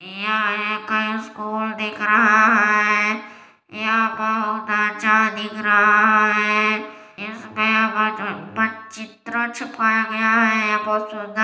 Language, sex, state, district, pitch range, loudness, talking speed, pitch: Hindi, female, Chhattisgarh, Balrampur, 210-220 Hz, -18 LUFS, 110 wpm, 215 Hz